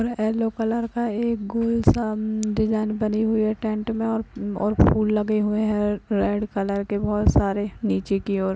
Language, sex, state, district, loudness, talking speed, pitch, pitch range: Hindi, female, Uttar Pradesh, Hamirpur, -23 LUFS, 215 wpm, 215 Hz, 205-225 Hz